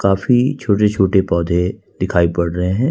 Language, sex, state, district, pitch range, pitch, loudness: Hindi, male, Jharkhand, Ranchi, 90-105 Hz, 95 Hz, -16 LUFS